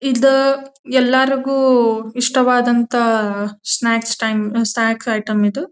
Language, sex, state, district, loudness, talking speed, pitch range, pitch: Kannada, female, Karnataka, Dharwad, -16 LUFS, 85 wpm, 225-260 Hz, 240 Hz